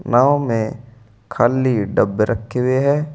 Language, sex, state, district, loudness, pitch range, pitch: Hindi, male, Uttar Pradesh, Saharanpur, -18 LUFS, 110-130 Hz, 120 Hz